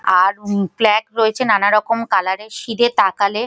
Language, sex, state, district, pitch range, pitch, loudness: Bengali, female, West Bengal, Paschim Medinipur, 200-225 Hz, 215 Hz, -16 LUFS